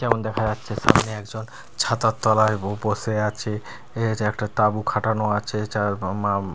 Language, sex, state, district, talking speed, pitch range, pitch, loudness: Bengali, male, Bihar, Katihar, 175 wpm, 105-110 Hz, 105 Hz, -23 LUFS